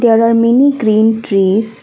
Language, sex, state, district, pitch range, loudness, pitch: English, female, Assam, Kamrup Metropolitan, 215-230 Hz, -11 LUFS, 225 Hz